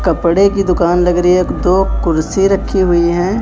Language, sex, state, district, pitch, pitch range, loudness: Hindi, male, Chhattisgarh, Raipur, 180 Hz, 175-195 Hz, -13 LUFS